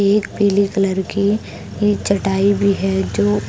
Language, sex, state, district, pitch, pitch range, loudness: Hindi, female, Punjab, Pathankot, 200 Hz, 190-200 Hz, -17 LUFS